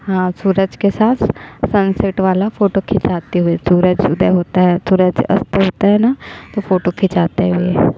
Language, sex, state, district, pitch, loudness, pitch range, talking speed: Hindi, female, Chhattisgarh, Jashpur, 190 Hz, -15 LUFS, 180-200 Hz, 165 wpm